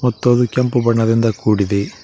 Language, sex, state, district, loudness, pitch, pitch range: Kannada, male, Karnataka, Koppal, -16 LUFS, 115 Hz, 110-125 Hz